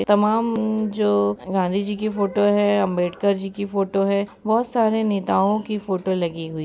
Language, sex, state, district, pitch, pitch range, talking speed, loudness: Hindi, female, Bihar, Gopalganj, 200 Hz, 190-215 Hz, 190 wpm, -21 LUFS